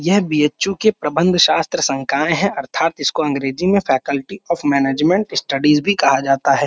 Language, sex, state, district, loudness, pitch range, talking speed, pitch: Hindi, male, Uttar Pradesh, Varanasi, -17 LUFS, 140-180 Hz, 170 wpm, 150 Hz